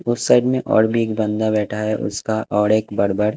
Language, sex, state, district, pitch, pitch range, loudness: Hindi, male, Haryana, Jhajjar, 110 Hz, 105-115 Hz, -19 LUFS